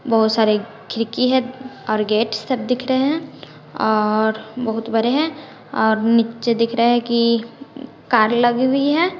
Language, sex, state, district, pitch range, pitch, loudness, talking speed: Hindi, female, Bihar, West Champaran, 225-260 Hz, 235 Hz, -18 LUFS, 155 wpm